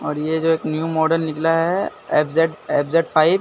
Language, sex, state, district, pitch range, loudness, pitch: Hindi, male, Bihar, Katihar, 155-165 Hz, -19 LUFS, 160 Hz